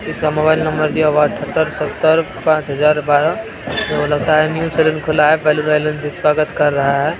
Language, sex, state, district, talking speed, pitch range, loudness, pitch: Maithili, male, Bihar, Araria, 165 wpm, 150-155 Hz, -15 LUFS, 155 Hz